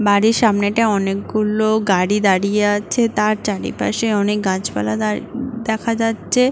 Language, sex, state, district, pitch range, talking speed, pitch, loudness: Bengali, female, West Bengal, Paschim Medinipur, 200-225 Hz, 120 wpm, 210 Hz, -18 LUFS